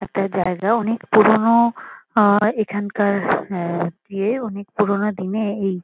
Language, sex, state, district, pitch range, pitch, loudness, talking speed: Bengali, female, West Bengal, Kolkata, 195-220 Hz, 205 Hz, -19 LUFS, 135 wpm